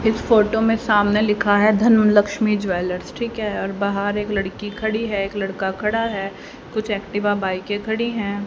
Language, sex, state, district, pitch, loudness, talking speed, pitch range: Hindi, female, Haryana, Rohtak, 205 Hz, -20 LUFS, 185 wpm, 200-220 Hz